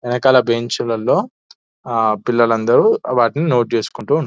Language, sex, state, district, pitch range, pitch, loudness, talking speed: Telugu, male, Telangana, Nalgonda, 115-125 Hz, 120 Hz, -16 LUFS, 125 wpm